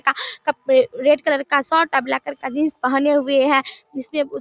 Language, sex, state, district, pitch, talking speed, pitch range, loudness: Hindi, female, Bihar, Darbhanga, 275 Hz, 230 wpm, 265-295 Hz, -19 LUFS